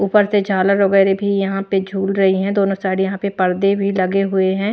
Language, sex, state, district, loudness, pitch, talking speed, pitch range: Hindi, female, Maharashtra, Washim, -17 LUFS, 195 Hz, 240 wpm, 190-200 Hz